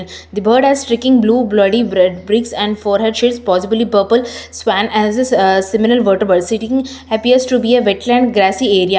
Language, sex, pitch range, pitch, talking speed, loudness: English, female, 200-245 Hz, 220 Hz, 175 wpm, -13 LUFS